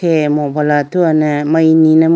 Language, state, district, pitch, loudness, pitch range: Idu Mishmi, Arunachal Pradesh, Lower Dibang Valley, 155 Hz, -12 LUFS, 150-160 Hz